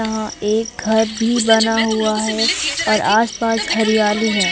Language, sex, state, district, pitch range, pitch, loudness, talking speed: Hindi, female, Madhya Pradesh, Umaria, 215-225 Hz, 220 Hz, -16 LUFS, 145 wpm